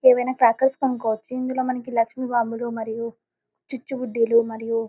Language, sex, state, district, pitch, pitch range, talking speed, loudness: Telugu, female, Telangana, Karimnagar, 240 Hz, 230-255 Hz, 125 wpm, -23 LUFS